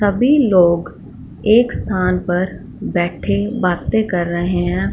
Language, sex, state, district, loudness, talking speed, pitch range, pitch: Hindi, female, Punjab, Fazilka, -17 LUFS, 120 wpm, 175-205 Hz, 180 Hz